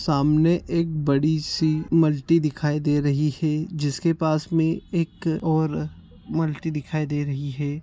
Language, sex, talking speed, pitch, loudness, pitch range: Konkani, male, 145 wpm, 155 Hz, -23 LUFS, 145-160 Hz